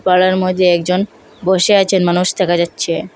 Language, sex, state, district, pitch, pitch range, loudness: Bengali, female, Assam, Hailakandi, 180 Hz, 175-190 Hz, -14 LUFS